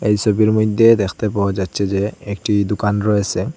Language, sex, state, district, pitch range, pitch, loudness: Bengali, male, Assam, Hailakandi, 100-105 Hz, 105 Hz, -17 LUFS